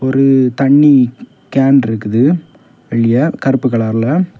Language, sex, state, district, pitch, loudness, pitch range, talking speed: Tamil, male, Tamil Nadu, Kanyakumari, 135 Hz, -12 LUFS, 120-140 Hz, 110 wpm